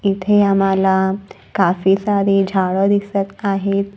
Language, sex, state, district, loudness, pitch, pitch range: Marathi, female, Maharashtra, Gondia, -16 LUFS, 195 Hz, 190-200 Hz